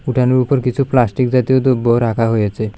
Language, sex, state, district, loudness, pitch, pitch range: Bengali, male, Tripura, South Tripura, -15 LUFS, 125 Hz, 115-130 Hz